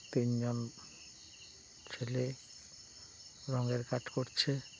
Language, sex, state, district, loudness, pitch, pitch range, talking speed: Bengali, male, West Bengal, Paschim Medinipur, -37 LUFS, 120 Hz, 115-125 Hz, 75 wpm